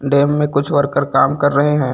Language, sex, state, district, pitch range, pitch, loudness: Hindi, male, Uttar Pradesh, Lucknow, 140-150 Hz, 145 Hz, -15 LUFS